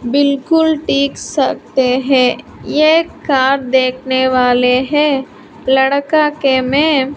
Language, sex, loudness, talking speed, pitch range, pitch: Hindi, female, -13 LUFS, 100 wpm, 260-295 Hz, 270 Hz